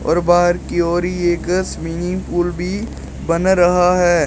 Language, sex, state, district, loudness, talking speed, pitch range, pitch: Hindi, male, Uttar Pradesh, Shamli, -17 LUFS, 170 wpm, 175-180 Hz, 175 Hz